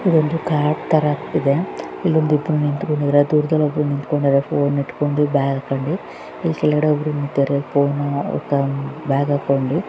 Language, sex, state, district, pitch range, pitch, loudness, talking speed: Kannada, female, Karnataka, Raichur, 140-150 Hz, 145 Hz, -19 LUFS, 75 wpm